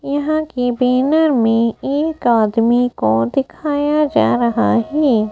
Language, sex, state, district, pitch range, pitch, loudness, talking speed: Hindi, female, Madhya Pradesh, Bhopal, 230-295 Hz, 250 Hz, -16 LUFS, 125 wpm